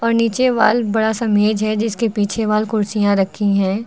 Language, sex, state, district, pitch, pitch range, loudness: Hindi, female, Uttar Pradesh, Lucknow, 215 Hz, 205-225 Hz, -17 LUFS